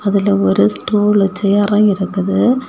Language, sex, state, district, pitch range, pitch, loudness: Tamil, female, Tamil Nadu, Kanyakumari, 190-210 Hz, 200 Hz, -14 LUFS